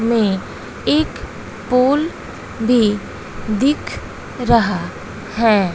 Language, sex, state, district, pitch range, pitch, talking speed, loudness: Hindi, female, Bihar, West Champaran, 210-260 Hz, 230 Hz, 75 wpm, -18 LUFS